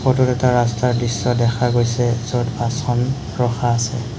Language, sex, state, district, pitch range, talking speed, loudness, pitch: Assamese, male, Assam, Hailakandi, 120-125 Hz, 155 wpm, -19 LUFS, 120 Hz